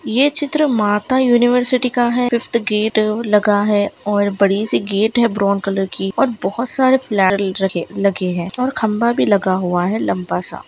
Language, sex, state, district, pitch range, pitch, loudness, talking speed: Hindi, female, Bihar, Kishanganj, 195-240 Hz, 210 Hz, -16 LUFS, 190 wpm